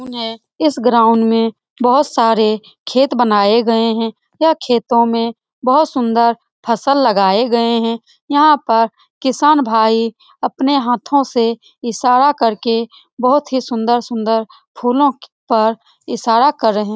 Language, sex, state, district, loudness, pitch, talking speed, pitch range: Hindi, female, Bihar, Lakhisarai, -15 LUFS, 235 Hz, 130 wpm, 225-260 Hz